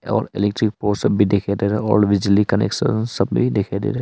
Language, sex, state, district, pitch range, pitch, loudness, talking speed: Hindi, male, Arunachal Pradesh, Longding, 100-110 Hz, 105 Hz, -19 LUFS, 225 wpm